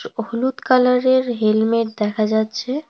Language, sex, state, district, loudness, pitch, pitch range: Bengali, female, West Bengal, Cooch Behar, -18 LUFS, 230 Hz, 220-255 Hz